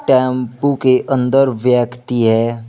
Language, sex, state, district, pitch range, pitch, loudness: Hindi, male, Uttar Pradesh, Shamli, 120-135 Hz, 125 Hz, -15 LUFS